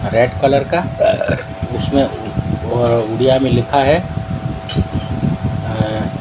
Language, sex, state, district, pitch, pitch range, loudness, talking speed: Hindi, male, Odisha, Sambalpur, 120 Hz, 110-140 Hz, -17 LUFS, 95 wpm